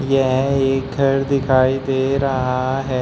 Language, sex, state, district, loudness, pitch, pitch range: Hindi, male, Uttar Pradesh, Shamli, -18 LUFS, 135 Hz, 130-135 Hz